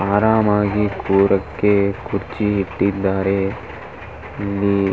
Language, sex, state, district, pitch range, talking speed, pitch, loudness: Kannada, male, Karnataka, Dharwad, 95-105 Hz, 75 wpm, 100 Hz, -18 LUFS